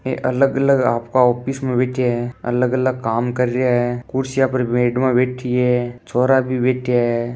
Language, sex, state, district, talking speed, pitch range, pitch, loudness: Hindi, male, Rajasthan, Nagaur, 190 wpm, 120-130 Hz, 125 Hz, -18 LUFS